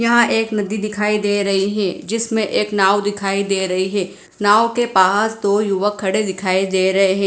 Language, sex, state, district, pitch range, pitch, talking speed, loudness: Hindi, female, Punjab, Fazilka, 195-210 Hz, 205 Hz, 200 wpm, -17 LUFS